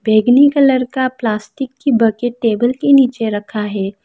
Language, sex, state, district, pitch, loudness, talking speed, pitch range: Hindi, female, Arunachal Pradesh, Lower Dibang Valley, 245 Hz, -14 LUFS, 165 wpm, 215-265 Hz